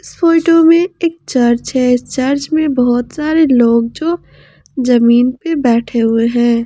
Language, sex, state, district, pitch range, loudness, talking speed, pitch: Hindi, female, Jharkhand, Ranchi, 240-320 Hz, -12 LUFS, 155 wpm, 255 Hz